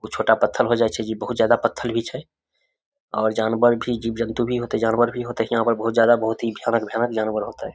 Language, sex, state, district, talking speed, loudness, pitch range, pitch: Maithili, male, Bihar, Samastipur, 250 wpm, -21 LUFS, 110-120 Hz, 115 Hz